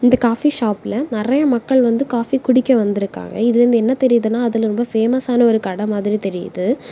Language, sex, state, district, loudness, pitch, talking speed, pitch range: Tamil, female, Tamil Nadu, Kanyakumari, -17 LUFS, 235 Hz, 180 wpm, 220-255 Hz